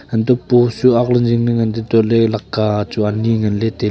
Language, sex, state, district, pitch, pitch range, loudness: Wancho, male, Arunachal Pradesh, Longding, 115 Hz, 110-120 Hz, -15 LUFS